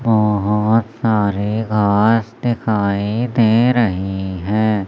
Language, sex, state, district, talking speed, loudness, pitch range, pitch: Hindi, male, Madhya Pradesh, Umaria, 75 wpm, -17 LUFS, 100-115 Hz, 110 Hz